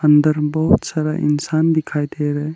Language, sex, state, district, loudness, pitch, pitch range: Hindi, male, Arunachal Pradesh, Lower Dibang Valley, -18 LUFS, 150 Hz, 150-155 Hz